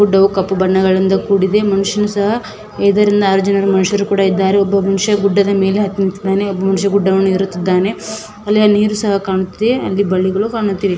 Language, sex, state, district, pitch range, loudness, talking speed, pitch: Kannada, female, Karnataka, Belgaum, 190-205 Hz, -14 LUFS, 130 wpm, 200 Hz